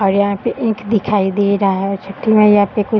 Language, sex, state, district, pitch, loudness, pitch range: Hindi, female, Bihar, Sitamarhi, 205 Hz, -15 LUFS, 195-215 Hz